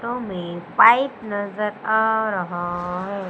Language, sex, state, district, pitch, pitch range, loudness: Hindi, female, Madhya Pradesh, Umaria, 205 Hz, 180-220 Hz, -21 LUFS